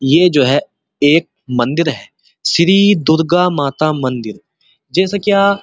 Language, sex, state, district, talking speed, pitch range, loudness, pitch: Hindi, male, Uttar Pradesh, Muzaffarnagar, 140 wpm, 135-185 Hz, -14 LUFS, 160 Hz